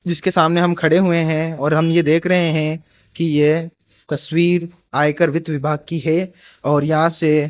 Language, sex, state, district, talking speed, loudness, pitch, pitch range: Hindi, male, Rajasthan, Jaipur, 190 wpm, -17 LUFS, 160 Hz, 155-170 Hz